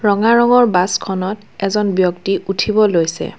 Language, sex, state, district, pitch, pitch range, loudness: Assamese, female, Assam, Kamrup Metropolitan, 195 Hz, 185-215 Hz, -15 LUFS